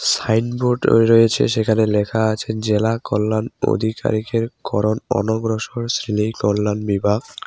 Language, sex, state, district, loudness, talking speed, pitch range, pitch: Bengali, male, West Bengal, Cooch Behar, -19 LUFS, 105 wpm, 105-115 Hz, 110 Hz